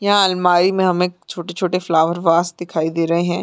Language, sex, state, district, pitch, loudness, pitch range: Hindi, female, Uttar Pradesh, Muzaffarnagar, 175 Hz, -17 LUFS, 170-180 Hz